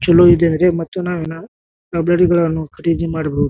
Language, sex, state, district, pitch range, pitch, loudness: Kannada, male, Karnataka, Bijapur, 160-175 Hz, 170 Hz, -16 LUFS